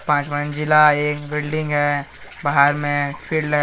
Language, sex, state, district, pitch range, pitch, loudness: Hindi, male, Jharkhand, Deoghar, 145-150 Hz, 145 Hz, -19 LUFS